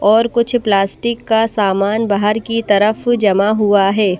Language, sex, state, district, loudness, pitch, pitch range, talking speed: Hindi, female, Madhya Pradesh, Bhopal, -14 LUFS, 210 Hz, 200-230 Hz, 155 wpm